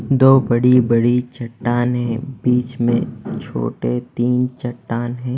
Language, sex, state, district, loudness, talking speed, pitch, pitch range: Hindi, male, Punjab, Fazilka, -18 LUFS, 100 wpm, 120 Hz, 120-125 Hz